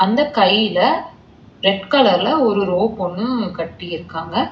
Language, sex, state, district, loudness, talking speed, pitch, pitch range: Tamil, female, Tamil Nadu, Chennai, -17 LUFS, 120 wpm, 200 Hz, 180-245 Hz